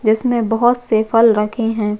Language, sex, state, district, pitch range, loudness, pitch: Hindi, female, Chhattisgarh, Jashpur, 215-235 Hz, -15 LUFS, 225 Hz